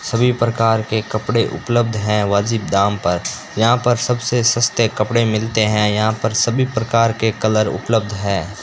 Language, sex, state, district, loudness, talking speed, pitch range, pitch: Hindi, male, Rajasthan, Bikaner, -17 LUFS, 165 wpm, 105-115 Hz, 110 Hz